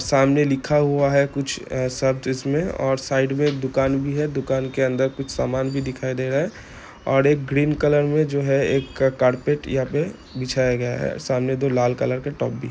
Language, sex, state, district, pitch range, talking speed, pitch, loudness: Hindi, male, Bihar, Gopalganj, 130-140 Hz, 210 wpm, 135 Hz, -21 LUFS